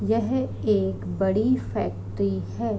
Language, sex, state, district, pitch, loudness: Hindi, female, Uttar Pradesh, Varanasi, 100 Hz, -25 LUFS